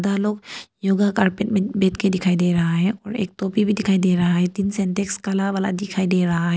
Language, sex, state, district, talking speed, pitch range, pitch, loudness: Hindi, female, Arunachal Pradesh, Papum Pare, 255 wpm, 185-200 Hz, 195 Hz, -21 LUFS